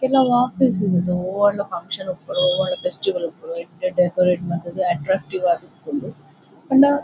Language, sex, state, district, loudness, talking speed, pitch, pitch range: Tulu, female, Karnataka, Dakshina Kannada, -21 LUFS, 145 wpm, 200 Hz, 180-270 Hz